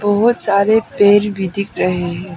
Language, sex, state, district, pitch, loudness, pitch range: Hindi, female, Arunachal Pradesh, Papum Pare, 205 Hz, -15 LUFS, 185-210 Hz